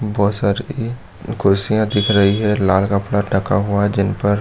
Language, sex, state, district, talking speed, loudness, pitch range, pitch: Hindi, male, Chhattisgarh, Bilaspur, 175 wpm, -17 LUFS, 100-105 Hz, 100 Hz